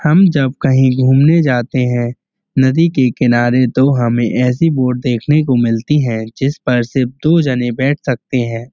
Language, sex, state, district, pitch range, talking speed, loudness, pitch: Hindi, male, Uttar Pradesh, Muzaffarnagar, 120-140 Hz, 170 wpm, -14 LUFS, 130 Hz